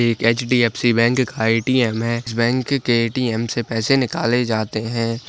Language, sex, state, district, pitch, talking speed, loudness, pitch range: Hindi, male, Maharashtra, Pune, 115 Hz, 160 wpm, -19 LUFS, 115-125 Hz